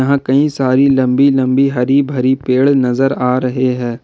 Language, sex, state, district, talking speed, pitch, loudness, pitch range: Hindi, male, Jharkhand, Ranchi, 180 wpm, 130 Hz, -13 LUFS, 125-140 Hz